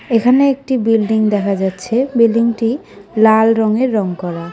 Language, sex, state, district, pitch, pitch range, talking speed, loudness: Bengali, female, West Bengal, Cooch Behar, 225 Hz, 205-235 Hz, 130 wpm, -14 LUFS